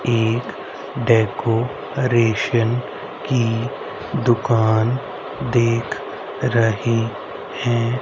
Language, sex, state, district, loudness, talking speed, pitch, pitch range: Hindi, male, Haryana, Rohtak, -20 LUFS, 50 wpm, 115 Hz, 115-120 Hz